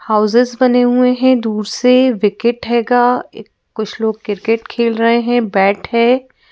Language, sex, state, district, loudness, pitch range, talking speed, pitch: Hindi, female, Madhya Pradesh, Bhopal, -14 LUFS, 220-250 Hz, 165 wpm, 235 Hz